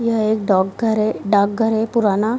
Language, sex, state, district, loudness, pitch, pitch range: Hindi, female, Bihar, Darbhanga, -18 LUFS, 215 Hz, 200-225 Hz